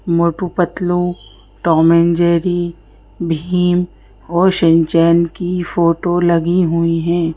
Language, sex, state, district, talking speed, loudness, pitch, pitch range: Hindi, female, Madhya Pradesh, Bhopal, 105 wpm, -15 LUFS, 170 Hz, 165-175 Hz